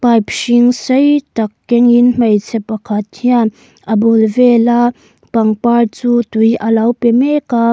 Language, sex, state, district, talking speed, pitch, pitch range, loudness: Mizo, female, Mizoram, Aizawl, 145 wpm, 235 Hz, 220-240 Hz, -12 LUFS